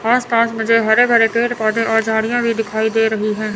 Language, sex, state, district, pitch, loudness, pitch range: Hindi, male, Chandigarh, Chandigarh, 225 Hz, -16 LUFS, 220-230 Hz